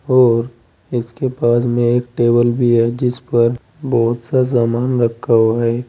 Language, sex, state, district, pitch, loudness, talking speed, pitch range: Hindi, male, Uttar Pradesh, Saharanpur, 120 Hz, -16 LUFS, 165 wpm, 115-125 Hz